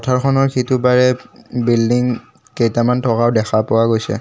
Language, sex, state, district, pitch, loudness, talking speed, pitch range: Assamese, male, Assam, Kamrup Metropolitan, 120 Hz, -16 LUFS, 130 wpm, 115-125 Hz